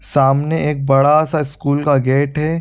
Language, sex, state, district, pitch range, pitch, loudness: Hindi, male, Bihar, Supaul, 140-155 Hz, 145 Hz, -15 LUFS